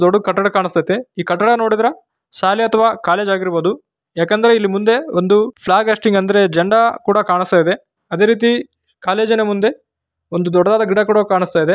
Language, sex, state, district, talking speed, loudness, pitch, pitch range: Kannada, male, Karnataka, Raichur, 175 wpm, -15 LUFS, 205 Hz, 180-220 Hz